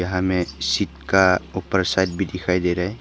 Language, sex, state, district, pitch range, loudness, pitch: Hindi, male, Arunachal Pradesh, Papum Pare, 90-95 Hz, -21 LUFS, 90 Hz